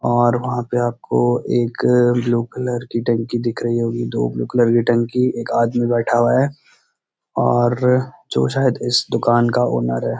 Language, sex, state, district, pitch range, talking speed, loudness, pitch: Hindi, male, Uttarakhand, Uttarkashi, 115-120 Hz, 175 wpm, -18 LUFS, 120 Hz